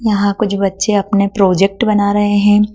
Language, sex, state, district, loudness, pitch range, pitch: Hindi, female, Madhya Pradesh, Dhar, -13 LUFS, 200-210 Hz, 205 Hz